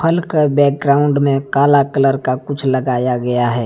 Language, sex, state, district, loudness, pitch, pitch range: Hindi, male, Jharkhand, Deoghar, -15 LUFS, 140 Hz, 130-145 Hz